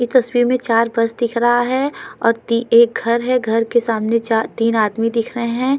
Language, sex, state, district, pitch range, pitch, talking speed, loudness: Hindi, female, Uttarakhand, Tehri Garhwal, 230-245 Hz, 235 Hz, 240 wpm, -17 LUFS